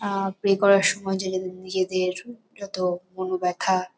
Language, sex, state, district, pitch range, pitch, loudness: Bengali, female, West Bengal, North 24 Parganas, 185-195 Hz, 185 Hz, -24 LUFS